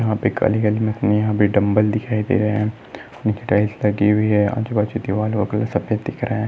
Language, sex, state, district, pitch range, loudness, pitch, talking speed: Hindi, male, Maharashtra, Nagpur, 105-110 Hz, -19 LUFS, 105 Hz, 205 wpm